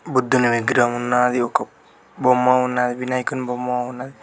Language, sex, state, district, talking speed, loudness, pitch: Telugu, male, Telangana, Mahabubabad, 125 wpm, -20 LUFS, 125 Hz